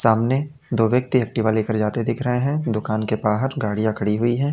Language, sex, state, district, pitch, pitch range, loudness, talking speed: Hindi, male, Uttar Pradesh, Lalitpur, 115 Hz, 110-130 Hz, -21 LUFS, 225 wpm